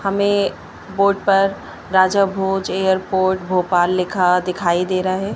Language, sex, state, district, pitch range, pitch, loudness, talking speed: Hindi, male, Madhya Pradesh, Bhopal, 185-195 Hz, 190 Hz, -18 LUFS, 135 wpm